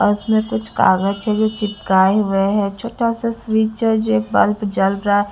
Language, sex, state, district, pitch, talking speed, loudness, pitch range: Hindi, female, Bihar, Kaimur, 205 Hz, 215 wpm, -17 LUFS, 195-220 Hz